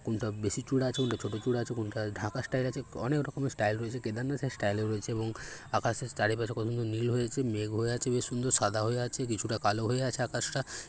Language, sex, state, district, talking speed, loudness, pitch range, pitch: Bengali, male, West Bengal, Paschim Medinipur, 205 wpm, -32 LUFS, 110-130 Hz, 115 Hz